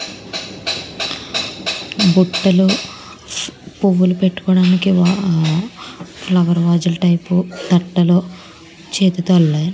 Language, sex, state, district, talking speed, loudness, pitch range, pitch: Telugu, female, Andhra Pradesh, Krishna, 35 wpm, -16 LUFS, 175-185 Hz, 180 Hz